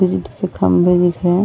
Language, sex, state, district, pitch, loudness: Hindi, female, Uttar Pradesh, Varanasi, 175 Hz, -15 LUFS